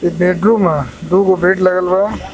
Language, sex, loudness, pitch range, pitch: Bhojpuri, male, -13 LUFS, 180-190 Hz, 185 Hz